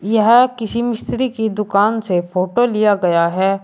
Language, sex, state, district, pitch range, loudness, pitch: Hindi, male, Uttar Pradesh, Shamli, 190-230 Hz, -16 LUFS, 215 Hz